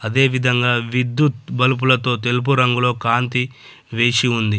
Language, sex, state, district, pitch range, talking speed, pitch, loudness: Telugu, male, Telangana, Adilabad, 120-130 Hz, 120 wpm, 125 Hz, -17 LUFS